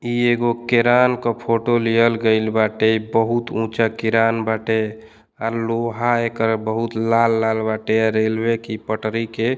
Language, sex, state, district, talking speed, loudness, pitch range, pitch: Bhojpuri, male, Uttar Pradesh, Deoria, 145 wpm, -19 LUFS, 110-115 Hz, 115 Hz